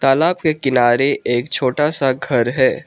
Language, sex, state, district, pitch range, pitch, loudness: Hindi, male, Arunachal Pradesh, Lower Dibang Valley, 125-150 Hz, 135 Hz, -16 LUFS